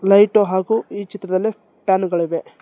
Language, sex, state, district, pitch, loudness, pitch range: Kannada, male, Karnataka, Bangalore, 195 Hz, -18 LUFS, 185-210 Hz